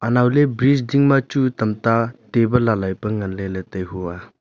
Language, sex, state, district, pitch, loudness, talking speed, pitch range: Wancho, male, Arunachal Pradesh, Longding, 115 Hz, -19 LUFS, 205 wpm, 95-125 Hz